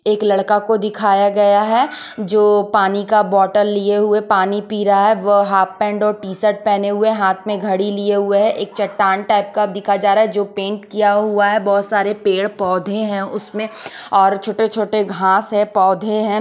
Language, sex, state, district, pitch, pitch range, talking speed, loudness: Hindi, female, Odisha, Khordha, 205 Hz, 200-210 Hz, 205 wpm, -16 LUFS